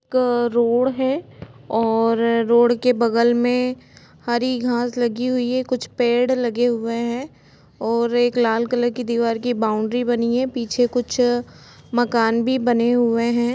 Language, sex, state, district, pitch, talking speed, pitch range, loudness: Hindi, female, Jharkhand, Jamtara, 240 Hz, 150 wpm, 235-245 Hz, -20 LUFS